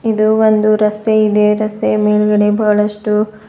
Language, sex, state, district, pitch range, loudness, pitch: Kannada, female, Karnataka, Bidar, 210-215 Hz, -13 LUFS, 215 Hz